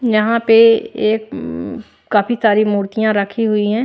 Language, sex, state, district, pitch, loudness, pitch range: Hindi, female, Maharashtra, Washim, 220 Hz, -15 LUFS, 210-230 Hz